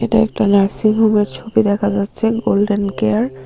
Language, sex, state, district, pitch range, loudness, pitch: Bengali, female, Tripura, Unakoti, 200-220 Hz, -15 LUFS, 205 Hz